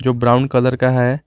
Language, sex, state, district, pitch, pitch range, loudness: Hindi, male, Jharkhand, Garhwa, 125 Hz, 125-130 Hz, -15 LUFS